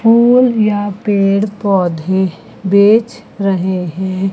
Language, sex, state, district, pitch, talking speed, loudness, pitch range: Hindi, female, Chandigarh, Chandigarh, 200 Hz, 95 wpm, -13 LUFS, 190-215 Hz